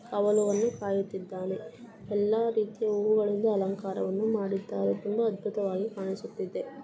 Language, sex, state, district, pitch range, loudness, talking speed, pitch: Kannada, female, Karnataka, Belgaum, 195-220 Hz, -30 LUFS, 95 wpm, 205 Hz